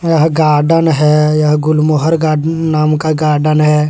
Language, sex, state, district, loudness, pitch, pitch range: Hindi, male, Jharkhand, Deoghar, -12 LUFS, 155 Hz, 150-160 Hz